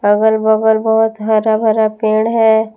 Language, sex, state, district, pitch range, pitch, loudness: Hindi, female, Jharkhand, Palamu, 215-220 Hz, 220 Hz, -13 LUFS